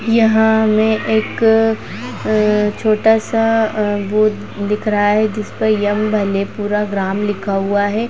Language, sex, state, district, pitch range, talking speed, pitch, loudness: Hindi, female, Uttar Pradesh, Jalaun, 205-220 Hz, 125 wpm, 215 Hz, -16 LUFS